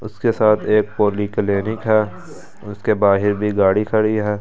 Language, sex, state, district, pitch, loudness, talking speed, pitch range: Hindi, male, Delhi, New Delhi, 105 Hz, -18 LUFS, 150 wpm, 105-110 Hz